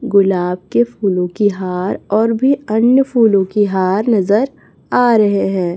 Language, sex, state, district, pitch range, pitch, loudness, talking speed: Hindi, female, Chhattisgarh, Raipur, 190-230 Hz, 205 Hz, -15 LUFS, 155 wpm